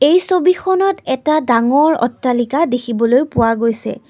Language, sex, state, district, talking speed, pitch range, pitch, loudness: Assamese, female, Assam, Kamrup Metropolitan, 115 wpm, 235-330 Hz, 265 Hz, -15 LUFS